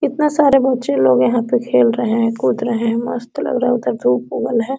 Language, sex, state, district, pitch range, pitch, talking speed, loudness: Hindi, female, Jharkhand, Sahebganj, 230-260 Hz, 240 Hz, 250 wpm, -16 LUFS